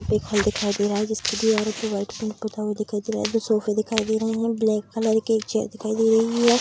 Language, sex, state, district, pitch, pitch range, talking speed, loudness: Hindi, female, Bihar, Darbhanga, 220 Hz, 210-225 Hz, 290 wpm, -23 LUFS